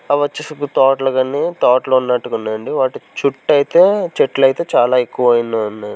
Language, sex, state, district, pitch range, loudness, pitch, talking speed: Telugu, male, Andhra Pradesh, Sri Satya Sai, 120-145 Hz, -15 LUFS, 130 Hz, 150 wpm